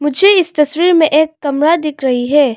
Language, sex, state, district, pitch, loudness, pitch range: Hindi, female, Arunachal Pradesh, Longding, 300 Hz, -12 LUFS, 285-325 Hz